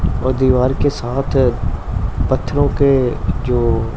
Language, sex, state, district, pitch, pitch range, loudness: Hindi, male, Punjab, Pathankot, 125 Hz, 115-135 Hz, -17 LUFS